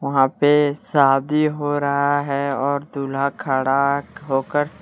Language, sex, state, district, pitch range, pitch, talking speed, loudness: Hindi, male, Jharkhand, Deoghar, 140-145 Hz, 140 Hz, 125 wpm, -20 LUFS